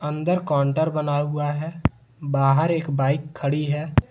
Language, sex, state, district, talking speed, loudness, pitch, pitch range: Hindi, male, Jharkhand, Deoghar, 145 wpm, -23 LUFS, 145 Hz, 140-155 Hz